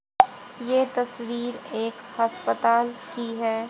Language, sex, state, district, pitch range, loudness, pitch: Hindi, female, Haryana, Jhajjar, 230-245 Hz, -25 LUFS, 235 Hz